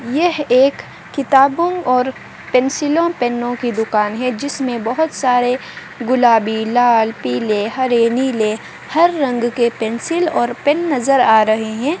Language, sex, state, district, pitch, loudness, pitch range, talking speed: Hindi, female, Bihar, Madhepura, 250 Hz, -16 LUFS, 230-280 Hz, 130 wpm